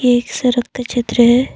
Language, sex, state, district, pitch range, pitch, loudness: Hindi, female, Assam, Kamrup Metropolitan, 240-250 Hz, 245 Hz, -15 LUFS